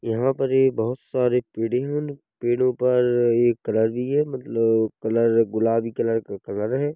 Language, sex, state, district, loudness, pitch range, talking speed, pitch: Hindi, male, Chhattisgarh, Korba, -22 LUFS, 115-130 Hz, 165 wpm, 120 Hz